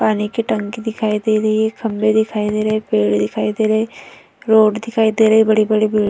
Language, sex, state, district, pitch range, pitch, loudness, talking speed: Hindi, female, Uttar Pradesh, Varanasi, 215-220 Hz, 215 Hz, -16 LUFS, 235 wpm